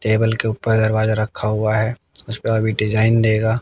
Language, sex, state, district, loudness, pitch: Hindi, male, Haryana, Jhajjar, -18 LUFS, 110 Hz